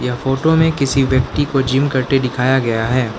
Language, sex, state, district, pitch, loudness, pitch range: Hindi, male, Arunachal Pradesh, Lower Dibang Valley, 130 Hz, -16 LUFS, 125-135 Hz